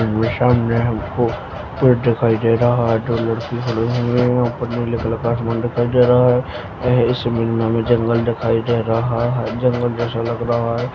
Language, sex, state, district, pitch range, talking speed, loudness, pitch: Hindi, male, Bihar, Purnia, 115-120 Hz, 205 wpm, -18 LUFS, 120 Hz